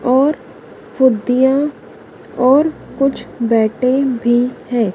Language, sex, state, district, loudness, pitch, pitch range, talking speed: Hindi, female, Madhya Pradesh, Dhar, -15 LUFS, 255 Hz, 240-270 Hz, 85 wpm